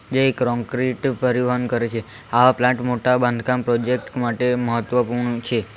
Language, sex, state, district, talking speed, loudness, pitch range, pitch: Gujarati, male, Gujarat, Valsad, 135 wpm, -20 LUFS, 120-125 Hz, 125 Hz